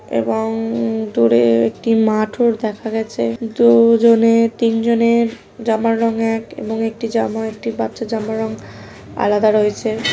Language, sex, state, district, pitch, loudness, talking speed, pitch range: Bengali, female, West Bengal, Dakshin Dinajpur, 220 Hz, -17 LUFS, 125 wpm, 210-230 Hz